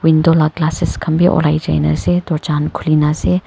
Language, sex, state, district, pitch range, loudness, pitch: Nagamese, female, Nagaland, Kohima, 150-165 Hz, -15 LUFS, 155 Hz